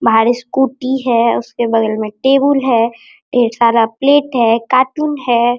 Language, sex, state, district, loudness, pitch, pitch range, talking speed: Hindi, male, Bihar, Araria, -14 LUFS, 240 Hz, 230-265 Hz, 150 wpm